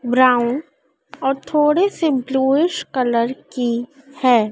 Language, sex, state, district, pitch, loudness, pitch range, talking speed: Hindi, female, Madhya Pradesh, Dhar, 265 Hz, -18 LUFS, 245-280 Hz, 105 wpm